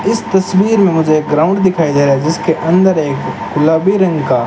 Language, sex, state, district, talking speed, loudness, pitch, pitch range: Hindi, male, Rajasthan, Bikaner, 215 wpm, -12 LUFS, 160 Hz, 150-190 Hz